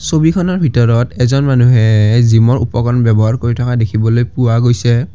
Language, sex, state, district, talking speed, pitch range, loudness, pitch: Assamese, male, Assam, Kamrup Metropolitan, 140 wpm, 115-125 Hz, -12 LUFS, 120 Hz